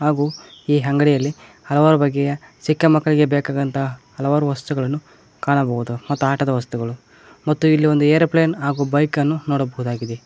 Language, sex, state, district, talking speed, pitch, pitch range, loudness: Kannada, male, Karnataka, Koppal, 125 wpm, 145 Hz, 135-150 Hz, -19 LUFS